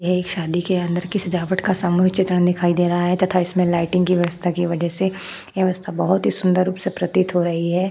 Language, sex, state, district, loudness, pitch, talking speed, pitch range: Hindi, female, Uttar Pradesh, Jyotiba Phule Nagar, -20 LUFS, 180 Hz, 240 wpm, 175-185 Hz